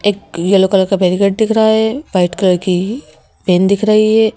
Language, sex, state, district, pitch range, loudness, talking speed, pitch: Hindi, female, Madhya Pradesh, Bhopal, 185-220 Hz, -13 LUFS, 205 wpm, 200 Hz